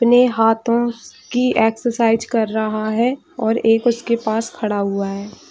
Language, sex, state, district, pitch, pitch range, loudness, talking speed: Hindi, female, Bihar, Jahanabad, 225 Hz, 220-240 Hz, -18 LUFS, 150 wpm